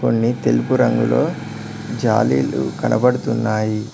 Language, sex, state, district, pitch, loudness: Telugu, male, Telangana, Mahabubabad, 110 Hz, -18 LUFS